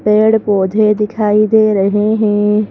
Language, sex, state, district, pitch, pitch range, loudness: Hindi, female, Madhya Pradesh, Bhopal, 210 Hz, 210-215 Hz, -12 LUFS